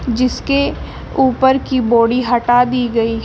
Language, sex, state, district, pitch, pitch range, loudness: Hindi, female, Uttar Pradesh, Shamli, 250 Hz, 235-265 Hz, -15 LUFS